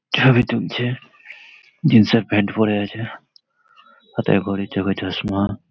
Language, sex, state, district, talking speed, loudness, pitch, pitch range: Bengali, male, West Bengal, Malda, 115 wpm, -19 LUFS, 110 Hz, 100-125 Hz